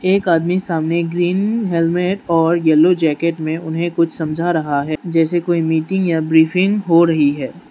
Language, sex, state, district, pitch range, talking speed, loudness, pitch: Hindi, male, Manipur, Imphal West, 160-175 Hz, 170 wpm, -16 LUFS, 165 Hz